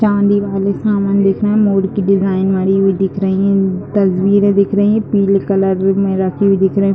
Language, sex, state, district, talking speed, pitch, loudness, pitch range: Hindi, female, Uttar Pradesh, Deoria, 205 wpm, 195 Hz, -14 LUFS, 195-200 Hz